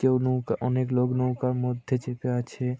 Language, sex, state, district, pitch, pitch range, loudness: Bengali, male, West Bengal, Purulia, 125 Hz, 125-130 Hz, -27 LUFS